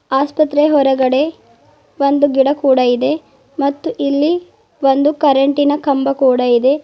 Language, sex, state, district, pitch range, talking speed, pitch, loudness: Kannada, female, Karnataka, Bidar, 270-290 Hz, 115 wpm, 280 Hz, -14 LUFS